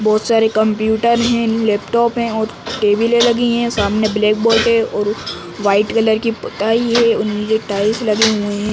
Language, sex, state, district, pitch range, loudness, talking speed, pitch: Hindi, male, Uttar Pradesh, Ghazipur, 210-230 Hz, -15 LUFS, 190 wpm, 220 Hz